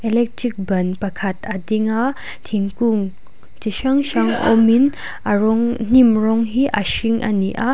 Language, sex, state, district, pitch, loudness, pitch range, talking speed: Mizo, female, Mizoram, Aizawl, 220 Hz, -18 LUFS, 200-235 Hz, 165 wpm